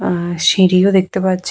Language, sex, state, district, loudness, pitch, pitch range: Bengali, female, West Bengal, Purulia, -14 LUFS, 185 Hz, 180-190 Hz